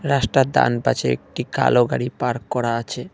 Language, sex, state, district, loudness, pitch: Bengali, male, West Bengal, Cooch Behar, -20 LUFS, 120 Hz